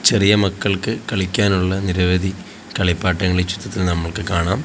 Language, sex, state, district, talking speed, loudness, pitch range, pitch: Malayalam, male, Kerala, Kozhikode, 115 wpm, -19 LUFS, 90-100 Hz, 95 Hz